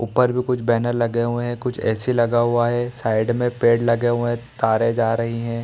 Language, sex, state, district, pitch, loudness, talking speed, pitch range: Hindi, male, Bihar, East Champaran, 120 Hz, -20 LUFS, 235 wpm, 115-120 Hz